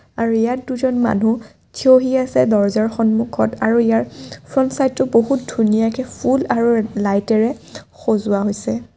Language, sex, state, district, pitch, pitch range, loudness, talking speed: Assamese, female, Assam, Kamrup Metropolitan, 225 Hz, 210-255 Hz, -17 LUFS, 135 wpm